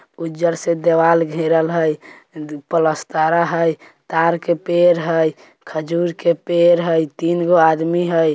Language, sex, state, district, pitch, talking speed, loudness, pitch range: Bajjika, male, Bihar, Vaishali, 165 Hz, 135 wpm, -17 LUFS, 160-170 Hz